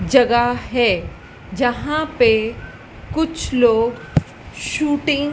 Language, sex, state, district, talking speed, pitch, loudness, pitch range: Hindi, female, Madhya Pradesh, Dhar, 90 wpm, 250 Hz, -18 LUFS, 240-295 Hz